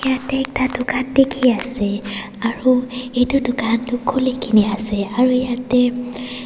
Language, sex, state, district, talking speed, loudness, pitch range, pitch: Nagamese, female, Nagaland, Dimapur, 120 wpm, -19 LUFS, 230-255 Hz, 250 Hz